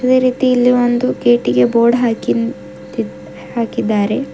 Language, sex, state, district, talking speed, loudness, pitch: Kannada, female, Karnataka, Bidar, 125 wpm, -15 LUFS, 230 Hz